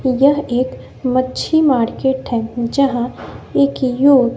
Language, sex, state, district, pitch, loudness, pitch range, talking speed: Hindi, female, Bihar, West Champaran, 255 Hz, -16 LUFS, 245-275 Hz, 95 wpm